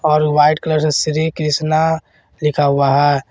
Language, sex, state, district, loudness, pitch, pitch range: Hindi, male, Jharkhand, Garhwa, -15 LUFS, 150 Hz, 145-155 Hz